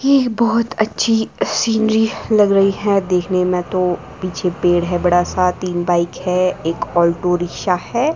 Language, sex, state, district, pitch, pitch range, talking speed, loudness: Hindi, female, Himachal Pradesh, Shimla, 185 Hz, 175-220 Hz, 160 wpm, -17 LUFS